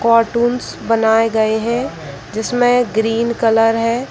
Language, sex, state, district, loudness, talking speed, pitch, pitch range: Hindi, female, Bihar, Jahanabad, -16 LUFS, 130 wpm, 225 Hz, 220-235 Hz